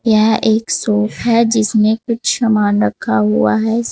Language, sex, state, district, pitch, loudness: Hindi, female, Uttar Pradesh, Saharanpur, 215 Hz, -14 LUFS